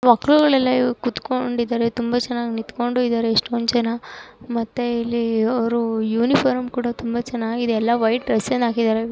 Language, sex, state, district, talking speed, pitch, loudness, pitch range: Kannada, female, Karnataka, Dharwad, 140 wpm, 235 Hz, -20 LUFS, 230-245 Hz